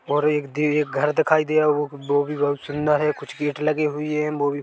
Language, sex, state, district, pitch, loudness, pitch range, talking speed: Hindi, male, Chhattisgarh, Korba, 150 Hz, -22 LUFS, 145-150 Hz, 270 wpm